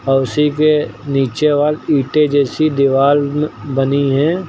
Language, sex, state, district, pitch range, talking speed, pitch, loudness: Hindi, male, Uttar Pradesh, Lucknow, 135-150 Hz, 135 wpm, 145 Hz, -15 LUFS